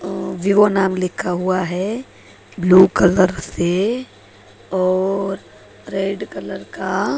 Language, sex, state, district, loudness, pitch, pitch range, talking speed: Hindi, female, Maharashtra, Mumbai Suburban, -18 LUFS, 185 Hz, 175-195 Hz, 110 wpm